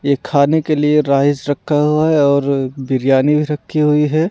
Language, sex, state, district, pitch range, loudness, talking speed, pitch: Hindi, male, Delhi, New Delhi, 140-150 Hz, -15 LUFS, 195 wpm, 145 Hz